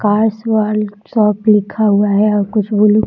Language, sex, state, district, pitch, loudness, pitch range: Hindi, female, Bihar, Jahanabad, 210 Hz, -14 LUFS, 205-215 Hz